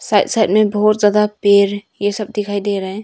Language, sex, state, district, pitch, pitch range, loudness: Hindi, female, Arunachal Pradesh, Longding, 205 Hz, 200-210 Hz, -15 LUFS